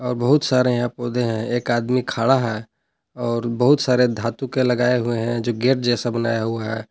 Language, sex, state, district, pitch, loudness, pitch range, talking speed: Hindi, male, Jharkhand, Palamu, 120 Hz, -20 LUFS, 115-125 Hz, 210 wpm